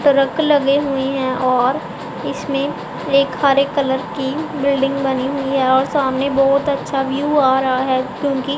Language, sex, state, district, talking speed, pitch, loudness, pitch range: Hindi, female, Punjab, Pathankot, 170 wpm, 275 Hz, -17 LUFS, 265-280 Hz